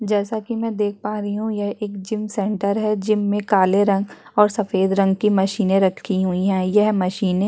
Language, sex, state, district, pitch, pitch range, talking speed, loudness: Hindi, female, Uttarakhand, Tehri Garhwal, 205 Hz, 195-210 Hz, 215 wpm, -20 LUFS